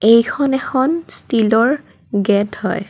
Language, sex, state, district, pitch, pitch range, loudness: Assamese, female, Assam, Kamrup Metropolitan, 230 Hz, 210-270 Hz, -17 LUFS